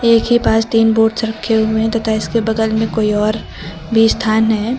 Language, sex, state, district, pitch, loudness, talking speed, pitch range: Hindi, female, Uttar Pradesh, Lucknow, 220 Hz, -15 LUFS, 215 wpm, 220-225 Hz